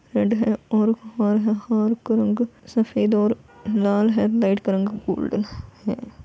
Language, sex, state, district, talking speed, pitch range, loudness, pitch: Hindi, female, Bihar, Gopalganj, 180 wpm, 210-225 Hz, -22 LUFS, 215 Hz